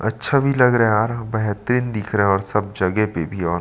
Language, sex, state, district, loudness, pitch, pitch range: Hindi, male, Chhattisgarh, Sukma, -19 LUFS, 105 Hz, 100-120 Hz